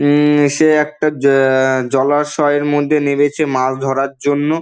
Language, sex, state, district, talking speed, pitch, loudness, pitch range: Bengali, male, West Bengal, Dakshin Dinajpur, 130 wpm, 145 Hz, -14 LUFS, 135-150 Hz